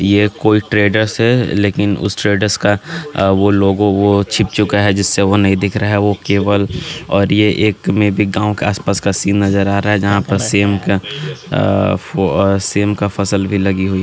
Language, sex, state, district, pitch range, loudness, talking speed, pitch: Hindi, male, Jharkhand, Garhwa, 100-105 Hz, -14 LUFS, 205 wpm, 100 Hz